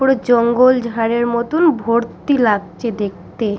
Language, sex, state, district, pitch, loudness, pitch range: Bengali, female, West Bengal, Purulia, 235 Hz, -16 LUFS, 225-255 Hz